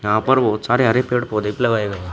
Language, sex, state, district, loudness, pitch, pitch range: Hindi, male, Uttar Pradesh, Shamli, -18 LUFS, 115 Hz, 105-125 Hz